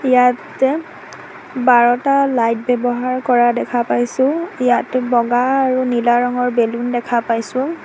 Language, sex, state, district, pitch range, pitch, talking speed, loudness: Assamese, female, Assam, Sonitpur, 240-260 Hz, 245 Hz, 115 wpm, -16 LUFS